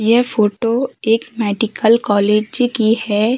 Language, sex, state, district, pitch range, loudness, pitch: Hindi, female, Uttar Pradesh, Hamirpur, 215-235 Hz, -16 LUFS, 225 Hz